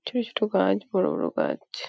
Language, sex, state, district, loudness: Bengali, female, West Bengal, Paschim Medinipur, -26 LUFS